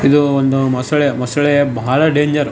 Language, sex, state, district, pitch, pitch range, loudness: Kannada, male, Karnataka, Raichur, 145 Hz, 135-145 Hz, -14 LUFS